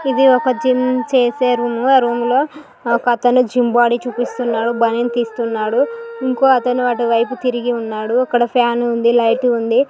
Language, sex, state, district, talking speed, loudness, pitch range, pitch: Telugu, female, Telangana, Karimnagar, 140 wpm, -16 LUFS, 235-255 Hz, 245 Hz